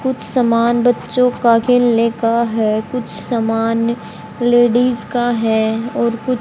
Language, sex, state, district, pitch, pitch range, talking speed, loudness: Hindi, male, Haryana, Charkhi Dadri, 235 Hz, 225-245 Hz, 130 wpm, -15 LUFS